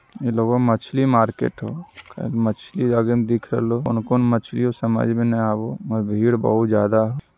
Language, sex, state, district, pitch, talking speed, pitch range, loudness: Magahi, male, Bihar, Jamui, 115 Hz, 185 wpm, 110-120 Hz, -20 LUFS